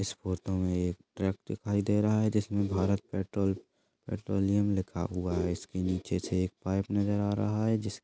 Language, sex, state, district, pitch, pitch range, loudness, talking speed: Hindi, male, Chhattisgarh, Kabirdham, 100 Hz, 95-105 Hz, -31 LUFS, 195 wpm